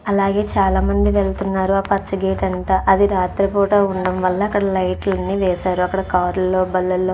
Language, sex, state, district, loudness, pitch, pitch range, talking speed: Telugu, female, Andhra Pradesh, Krishna, -18 LUFS, 190 Hz, 185-195 Hz, 170 wpm